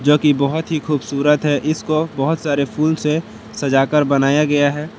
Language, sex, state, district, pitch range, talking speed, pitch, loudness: Hindi, male, Jharkhand, Palamu, 140-155 Hz, 155 wpm, 150 Hz, -17 LUFS